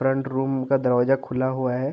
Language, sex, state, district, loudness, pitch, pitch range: Hindi, male, Uttar Pradesh, Jalaun, -23 LUFS, 130 Hz, 130-135 Hz